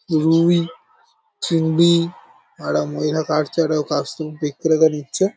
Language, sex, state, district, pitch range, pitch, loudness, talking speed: Bengali, male, West Bengal, Paschim Medinipur, 150-170 Hz, 160 Hz, -19 LUFS, 125 wpm